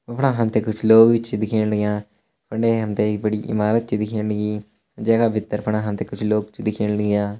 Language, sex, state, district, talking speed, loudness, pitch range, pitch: Hindi, male, Uttarakhand, Uttarkashi, 235 wpm, -20 LUFS, 105-110 Hz, 105 Hz